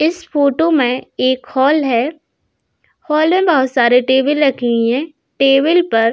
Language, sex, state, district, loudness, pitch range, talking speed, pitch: Hindi, female, Uttar Pradesh, Hamirpur, -14 LUFS, 255-310 Hz, 155 wpm, 275 Hz